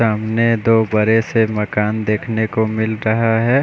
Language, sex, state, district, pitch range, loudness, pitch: Hindi, male, Odisha, Khordha, 110-115 Hz, -17 LUFS, 110 Hz